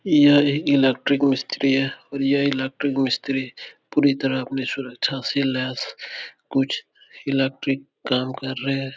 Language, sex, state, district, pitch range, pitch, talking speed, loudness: Hindi, male, Uttar Pradesh, Etah, 130-140 Hz, 135 Hz, 135 wpm, -22 LUFS